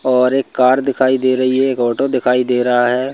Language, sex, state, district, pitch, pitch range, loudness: Hindi, male, Madhya Pradesh, Bhopal, 130 Hz, 125-130 Hz, -15 LUFS